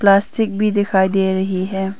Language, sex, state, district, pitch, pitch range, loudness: Hindi, female, Arunachal Pradesh, Papum Pare, 195 Hz, 190-205 Hz, -17 LUFS